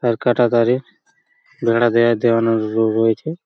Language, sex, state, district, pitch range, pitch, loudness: Bengali, male, West Bengal, Purulia, 115-120 Hz, 115 Hz, -17 LUFS